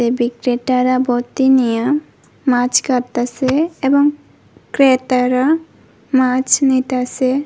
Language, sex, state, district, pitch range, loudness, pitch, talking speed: Bengali, female, Tripura, West Tripura, 250-275 Hz, -16 LUFS, 255 Hz, 70 wpm